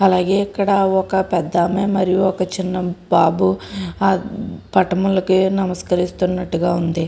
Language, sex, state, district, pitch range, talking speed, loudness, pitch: Telugu, female, Andhra Pradesh, Srikakulam, 180-195 Hz, 100 wpm, -18 LUFS, 185 Hz